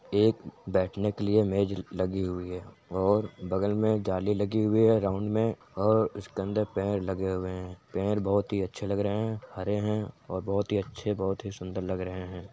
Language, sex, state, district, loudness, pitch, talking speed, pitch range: Hindi, male, Uttar Pradesh, Jyotiba Phule Nagar, -29 LUFS, 100 Hz, 205 wpm, 95-105 Hz